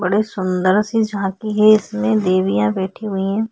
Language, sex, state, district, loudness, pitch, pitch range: Hindi, female, Maharashtra, Chandrapur, -17 LUFS, 195 Hz, 180-215 Hz